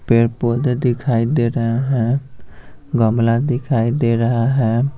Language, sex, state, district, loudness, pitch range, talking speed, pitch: Hindi, male, Bihar, Patna, -17 LUFS, 115-130 Hz, 120 wpm, 120 Hz